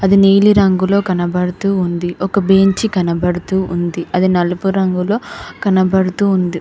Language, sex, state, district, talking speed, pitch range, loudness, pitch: Telugu, female, Telangana, Hyderabad, 120 wpm, 180-195 Hz, -14 LUFS, 190 Hz